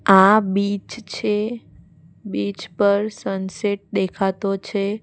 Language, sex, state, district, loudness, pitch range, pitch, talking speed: Gujarati, female, Gujarat, Valsad, -21 LUFS, 195-210 Hz, 200 Hz, 95 wpm